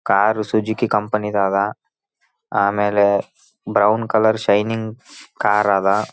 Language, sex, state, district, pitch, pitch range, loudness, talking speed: Kannada, male, Karnataka, Raichur, 105 Hz, 100-110 Hz, -18 LUFS, 100 wpm